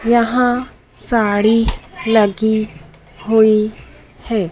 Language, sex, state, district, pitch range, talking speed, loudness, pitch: Hindi, female, Madhya Pradesh, Dhar, 215-230 Hz, 65 wpm, -16 LUFS, 220 Hz